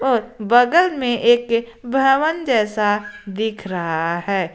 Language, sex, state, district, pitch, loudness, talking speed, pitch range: Hindi, female, Jharkhand, Garhwa, 230 Hz, -18 LUFS, 120 wpm, 205-250 Hz